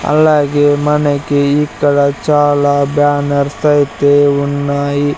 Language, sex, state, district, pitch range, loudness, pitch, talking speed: Telugu, male, Andhra Pradesh, Sri Satya Sai, 140-145 Hz, -12 LUFS, 145 Hz, 80 wpm